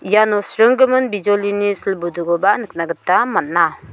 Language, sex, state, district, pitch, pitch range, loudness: Garo, female, Meghalaya, South Garo Hills, 205 Hz, 175-215 Hz, -16 LUFS